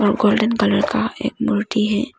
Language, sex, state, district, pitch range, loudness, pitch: Hindi, female, Arunachal Pradesh, Longding, 210-220 Hz, -19 LUFS, 215 Hz